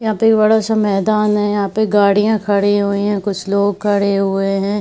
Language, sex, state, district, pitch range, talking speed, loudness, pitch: Hindi, female, Bihar, Saharsa, 200-215 Hz, 210 wpm, -15 LUFS, 205 Hz